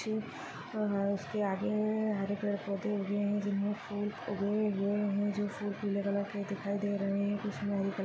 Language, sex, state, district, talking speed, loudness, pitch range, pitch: Hindi, female, Maharashtra, Nagpur, 195 wpm, -34 LUFS, 200-205 Hz, 205 Hz